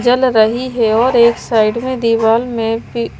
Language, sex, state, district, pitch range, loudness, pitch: Hindi, female, Himachal Pradesh, Shimla, 225-245 Hz, -14 LUFS, 230 Hz